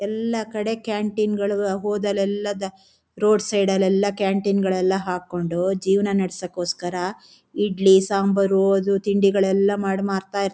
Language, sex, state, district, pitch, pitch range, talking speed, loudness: Kannada, female, Karnataka, Shimoga, 195 Hz, 190-205 Hz, 115 wpm, -21 LUFS